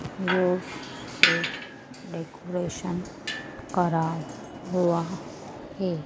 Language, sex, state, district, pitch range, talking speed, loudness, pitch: Hindi, female, Madhya Pradesh, Dhar, 170-185 Hz, 60 wpm, -27 LUFS, 180 Hz